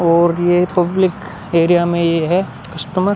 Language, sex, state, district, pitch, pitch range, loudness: Hindi, male, Bihar, Vaishali, 175 Hz, 170-180 Hz, -15 LUFS